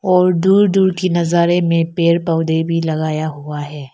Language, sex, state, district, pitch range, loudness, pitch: Hindi, female, Arunachal Pradesh, Lower Dibang Valley, 160-180 Hz, -16 LUFS, 170 Hz